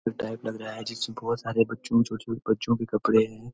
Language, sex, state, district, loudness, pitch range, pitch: Hindi, male, Uttarakhand, Uttarkashi, -27 LUFS, 110-115 Hz, 115 Hz